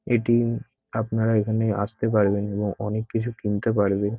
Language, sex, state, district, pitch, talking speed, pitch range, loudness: Bengali, male, West Bengal, North 24 Parganas, 110 Hz, 155 wpm, 105-115 Hz, -24 LUFS